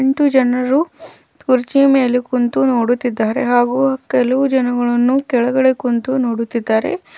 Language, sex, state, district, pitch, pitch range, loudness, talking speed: Kannada, female, Karnataka, Bidar, 255 Hz, 245-270 Hz, -16 LUFS, 100 wpm